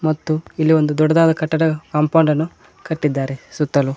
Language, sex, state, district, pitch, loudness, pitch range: Kannada, male, Karnataka, Koppal, 155 Hz, -18 LUFS, 150-160 Hz